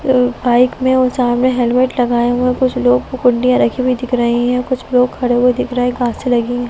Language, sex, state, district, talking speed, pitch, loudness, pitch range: Hindi, female, Bihar, Muzaffarpur, 215 wpm, 250 Hz, -14 LUFS, 245-255 Hz